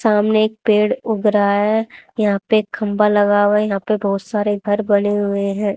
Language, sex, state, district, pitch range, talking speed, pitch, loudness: Hindi, female, Haryana, Jhajjar, 205-215 Hz, 195 wpm, 210 Hz, -17 LUFS